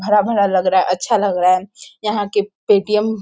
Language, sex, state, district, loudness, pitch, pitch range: Hindi, female, Bihar, Sitamarhi, -17 LUFS, 205 Hz, 190-210 Hz